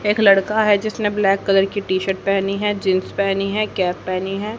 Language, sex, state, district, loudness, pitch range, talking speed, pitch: Hindi, female, Haryana, Jhajjar, -19 LUFS, 195-210 Hz, 195 wpm, 195 Hz